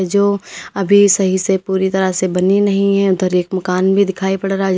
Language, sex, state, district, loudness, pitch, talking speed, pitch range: Hindi, female, Uttar Pradesh, Lalitpur, -15 LUFS, 190 Hz, 225 wpm, 185-200 Hz